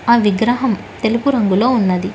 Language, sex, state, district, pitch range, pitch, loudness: Telugu, female, Telangana, Hyderabad, 205-245 Hz, 225 Hz, -15 LUFS